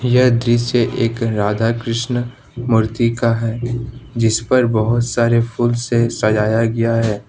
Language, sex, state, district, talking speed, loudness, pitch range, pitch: Hindi, male, Jharkhand, Ranchi, 130 wpm, -17 LUFS, 115-120 Hz, 115 Hz